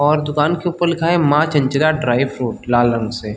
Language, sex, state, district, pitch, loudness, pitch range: Hindi, male, Chhattisgarh, Rajnandgaon, 145 Hz, -17 LUFS, 120-155 Hz